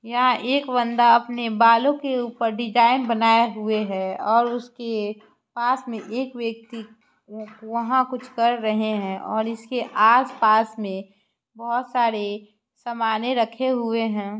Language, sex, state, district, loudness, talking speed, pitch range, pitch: Hindi, female, Bihar, Muzaffarpur, -22 LUFS, 135 wpm, 220-240 Hz, 230 Hz